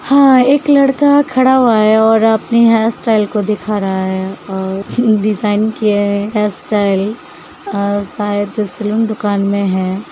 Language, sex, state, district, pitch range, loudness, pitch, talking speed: Hindi, female, Uttar Pradesh, Hamirpur, 200-230 Hz, -13 LUFS, 210 Hz, 155 wpm